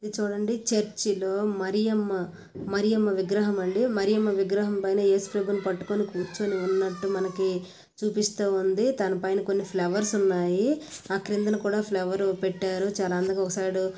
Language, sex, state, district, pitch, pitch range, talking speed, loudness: Telugu, female, Andhra Pradesh, Chittoor, 195 Hz, 190-210 Hz, 130 wpm, -26 LUFS